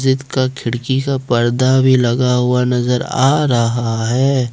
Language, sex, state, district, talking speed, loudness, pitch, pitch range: Hindi, male, Jharkhand, Ranchi, 145 wpm, -15 LUFS, 125 Hz, 120-130 Hz